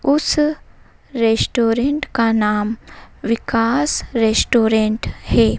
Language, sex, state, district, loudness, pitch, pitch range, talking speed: Hindi, female, Madhya Pradesh, Dhar, -17 LUFS, 230 Hz, 220-275 Hz, 75 wpm